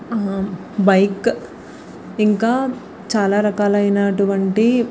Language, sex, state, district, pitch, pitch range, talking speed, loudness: Telugu, female, Andhra Pradesh, Visakhapatnam, 205 Hz, 200-225 Hz, 100 wpm, -18 LUFS